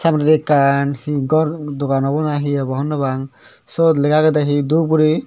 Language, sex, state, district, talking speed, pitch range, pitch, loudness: Chakma, male, Tripura, Dhalai, 180 wpm, 140-155 Hz, 150 Hz, -17 LUFS